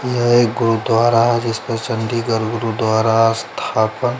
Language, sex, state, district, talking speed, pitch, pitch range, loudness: Hindi, male, Chandigarh, Chandigarh, 145 wpm, 115 Hz, 110-120 Hz, -17 LUFS